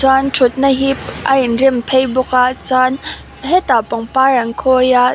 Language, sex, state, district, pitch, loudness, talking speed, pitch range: Mizo, female, Mizoram, Aizawl, 260 Hz, -14 LUFS, 165 wpm, 250-270 Hz